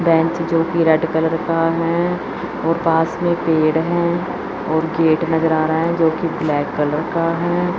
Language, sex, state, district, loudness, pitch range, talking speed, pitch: Hindi, female, Chandigarh, Chandigarh, -18 LUFS, 160-170 Hz, 170 wpm, 165 Hz